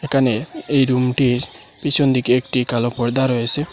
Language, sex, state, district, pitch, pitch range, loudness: Bengali, male, Assam, Hailakandi, 130 Hz, 125-140 Hz, -17 LUFS